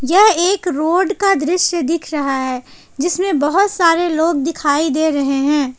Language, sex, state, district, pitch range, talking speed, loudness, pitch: Hindi, female, Jharkhand, Palamu, 290-360 Hz, 165 wpm, -16 LUFS, 330 Hz